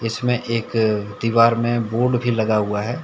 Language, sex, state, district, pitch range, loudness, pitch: Hindi, male, Jharkhand, Deoghar, 110-120 Hz, -20 LUFS, 115 Hz